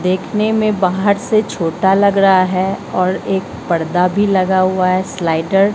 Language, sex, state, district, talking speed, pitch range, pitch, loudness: Hindi, female, Bihar, Katihar, 180 wpm, 185-200 Hz, 190 Hz, -15 LUFS